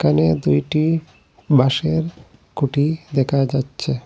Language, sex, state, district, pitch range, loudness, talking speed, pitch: Bengali, male, Assam, Hailakandi, 130-155 Hz, -19 LUFS, 90 wpm, 140 Hz